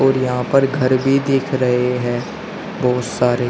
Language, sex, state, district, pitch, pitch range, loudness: Hindi, male, Uttar Pradesh, Shamli, 130 Hz, 125-135 Hz, -17 LUFS